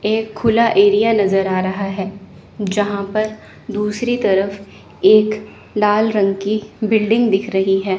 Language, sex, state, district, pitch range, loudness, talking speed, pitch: Hindi, female, Chandigarh, Chandigarh, 195-215 Hz, -17 LUFS, 140 wpm, 210 Hz